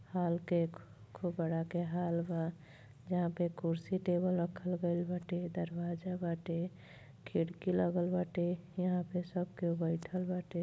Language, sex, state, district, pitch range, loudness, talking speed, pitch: Bhojpuri, female, Uttar Pradesh, Gorakhpur, 170-180 Hz, -37 LUFS, 140 wpm, 175 Hz